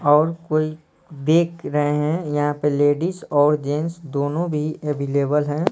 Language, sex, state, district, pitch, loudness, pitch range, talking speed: Hindi, male, Bihar, Patna, 150 Hz, -21 LUFS, 145-160 Hz, 145 wpm